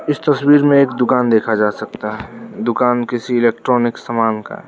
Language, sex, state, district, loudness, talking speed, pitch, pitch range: Hindi, male, Arunachal Pradesh, Lower Dibang Valley, -16 LUFS, 190 wpm, 120 Hz, 115-130 Hz